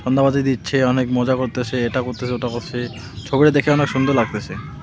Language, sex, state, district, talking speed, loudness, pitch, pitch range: Bengali, male, West Bengal, Alipurduar, 185 wpm, -19 LUFS, 130 Hz, 120-135 Hz